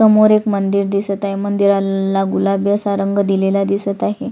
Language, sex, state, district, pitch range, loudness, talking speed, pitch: Marathi, female, Maharashtra, Solapur, 195-200 Hz, -16 LUFS, 165 wpm, 200 Hz